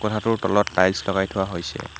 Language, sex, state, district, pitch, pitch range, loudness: Assamese, male, Assam, Hailakandi, 95 Hz, 95-105 Hz, -22 LUFS